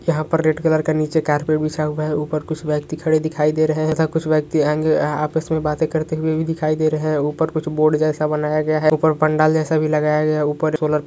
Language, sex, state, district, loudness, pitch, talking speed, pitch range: Hindi, male, West Bengal, Paschim Medinipur, -19 LUFS, 155 Hz, 265 wpm, 150-155 Hz